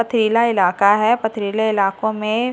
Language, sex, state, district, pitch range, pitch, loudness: Hindi, female, Delhi, New Delhi, 205-230 Hz, 220 Hz, -17 LUFS